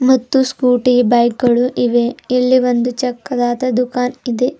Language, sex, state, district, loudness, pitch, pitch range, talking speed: Kannada, female, Karnataka, Bidar, -15 LUFS, 250 Hz, 245-255 Hz, 130 wpm